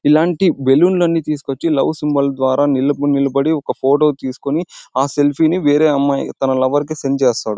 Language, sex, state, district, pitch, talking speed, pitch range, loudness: Telugu, male, Andhra Pradesh, Anantapur, 145 Hz, 165 wpm, 135-155 Hz, -16 LUFS